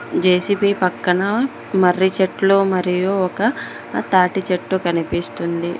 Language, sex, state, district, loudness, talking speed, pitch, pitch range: Telugu, female, Telangana, Mahabubabad, -18 LUFS, 95 wpm, 185 Hz, 180-195 Hz